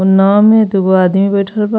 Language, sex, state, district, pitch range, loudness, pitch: Bhojpuri, female, Uttar Pradesh, Ghazipur, 190-210 Hz, -10 LUFS, 200 Hz